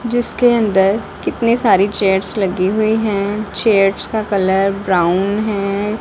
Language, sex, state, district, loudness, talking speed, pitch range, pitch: Hindi, female, Punjab, Pathankot, -16 LUFS, 130 wpm, 195-215 Hz, 200 Hz